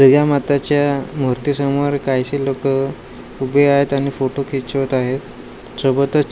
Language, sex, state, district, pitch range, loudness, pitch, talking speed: Marathi, male, Maharashtra, Gondia, 130-140 Hz, -18 LUFS, 140 Hz, 125 wpm